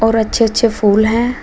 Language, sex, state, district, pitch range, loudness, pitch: Hindi, female, Uttar Pradesh, Shamli, 220-230 Hz, -13 LUFS, 225 Hz